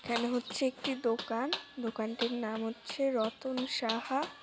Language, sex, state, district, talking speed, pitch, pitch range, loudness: Bengali, female, West Bengal, Jhargram, 120 wpm, 235 Hz, 225-265 Hz, -34 LUFS